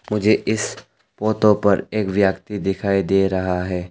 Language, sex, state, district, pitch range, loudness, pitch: Hindi, male, Arunachal Pradesh, Lower Dibang Valley, 95-105 Hz, -20 LUFS, 100 Hz